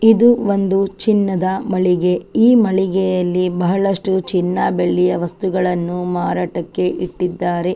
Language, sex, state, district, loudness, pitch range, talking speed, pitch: Kannada, female, Karnataka, Chamarajanagar, -17 LUFS, 180-195 Hz, 95 wpm, 185 Hz